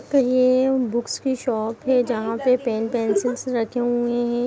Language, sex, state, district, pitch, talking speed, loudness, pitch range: Hindi, female, Bihar, Jahanabad, 240 Hz, 175 wpm, -21 LUFS, 235-255 Hz